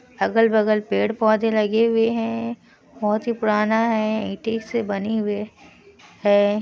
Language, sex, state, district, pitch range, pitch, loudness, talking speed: Hindi, female, Bihar, Kishanganj, 210-225 Hz, 220 Hz, -21 LUFS, 135 wpm